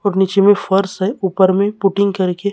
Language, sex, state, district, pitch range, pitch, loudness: Hindi, male, Maharashtra, Gondia, 190-200 Hz, 195 Hz, -15 LUFS